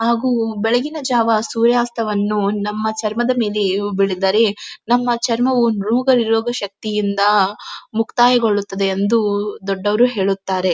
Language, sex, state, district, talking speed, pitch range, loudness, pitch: Kannada, female, Karnataka, Dharwad, 90 wpm, 205-235 Hz, -17 LUFS, 220 Hz